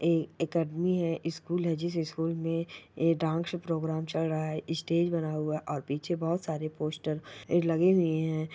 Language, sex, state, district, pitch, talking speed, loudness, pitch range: Angika, male, Bihar, Samastipur, 165 Hz, 180 wpm, -31 LUFS, 155-170 Hz